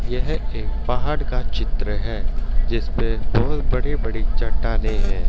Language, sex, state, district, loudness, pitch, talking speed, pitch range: Hindi, male, Haryana, Jhajjar, -25 LUFS, 115 Hz, 135 wpm, 110-125 Hz